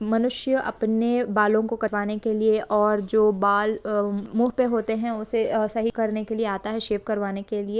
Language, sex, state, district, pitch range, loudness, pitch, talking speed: Hindi, female, Jharkhand, Jamtara, 210-225 Hz, -24 LUFS, 220 Hz, 190 wpm